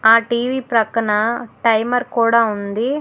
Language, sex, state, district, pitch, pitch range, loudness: Telugu, female, Telangana, Hyderabad, 230 Hz, 225-240 Hz, -17 LUFS